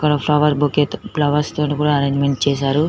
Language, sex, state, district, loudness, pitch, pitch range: Telugu, female, Telangana, Nalgonda, -17 LUFS, 145 Hz, 140-150 Hz